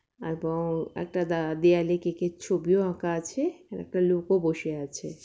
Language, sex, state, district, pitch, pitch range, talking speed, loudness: Bengali, female, West Bengal, Purulia, 175 Hz, 165-180 Hz, 185 wpm, -28 LUFS